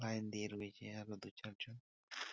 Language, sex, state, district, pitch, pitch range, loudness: Bengali, male, West Bengal, Purulia, 105 Hz, 105-110 Hz, -48 LUFS